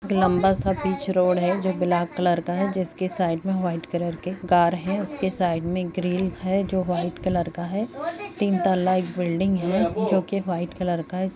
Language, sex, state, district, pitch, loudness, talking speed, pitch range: Hindi, female, Jharkhand, Sahebganj, 185 Hz, -24 LUFS, 205 wpm, 175-190 Hz